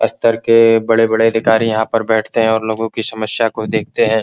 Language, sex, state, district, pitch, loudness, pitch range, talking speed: Hindi, male, Bihar, Supaul, 115 Hz, -14 LUFS, 110-115 Hz, 225 wpm